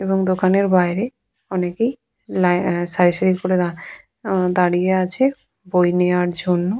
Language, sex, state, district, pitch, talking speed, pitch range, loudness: Bengali, female, West Bengal, Purulia, 185 Hz, 140 wpm, 180-190 Hz, -19 LUFS